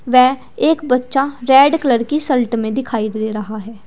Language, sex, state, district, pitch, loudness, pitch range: Hindi, female, Uttar Pradesh, Saharanpur, 255 Hz, -16 LUFS, 225-270 Hz